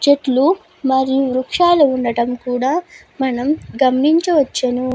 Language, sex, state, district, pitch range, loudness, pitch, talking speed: Telugu, female, Andhra Pradesh, Guntur, 255-300 Hz, -16 LUFS, 265 Hz, 95 wpm